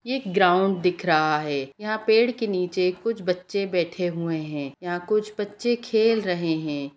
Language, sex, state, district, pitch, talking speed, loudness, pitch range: Hindi, female, Bihar, Gaya, 185 Hz, 170 wpm, -24 LUFS, 165-215 Hz